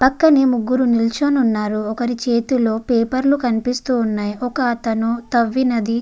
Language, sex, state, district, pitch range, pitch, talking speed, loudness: Telugu, female, Andhra Pradesh, Guntur, 230-255 Hz, 240 Hz, 130 wpm, -18 LUFS